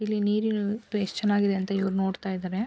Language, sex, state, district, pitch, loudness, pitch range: Kannada, female, Karnataka, Mysore, 205 Hz, -27 LUFS, 195-210 Hz